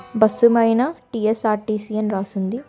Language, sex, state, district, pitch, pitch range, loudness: Telugu, female, Telangana, Hyderabad, 220 Hz, 215-235 Hz, -19 LUFS